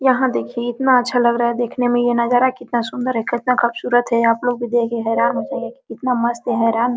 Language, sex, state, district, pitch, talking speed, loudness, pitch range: Hindi, female, Bihar, Araria, 240 Hz, 250 wpm, -18 LUFS, 235-250 Hz